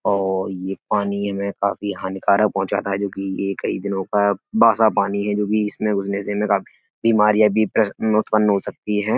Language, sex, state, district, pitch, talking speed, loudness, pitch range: Hindi, male, Uttar Pradesh, Etah, 100 Hz, 195 wpm, -20 LUFS, 100-105 Hz